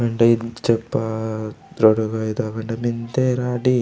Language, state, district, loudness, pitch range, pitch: Gondi, Chhattisgarh, Sukma, -21 LUFS, 110-125 Hz, 115 Hz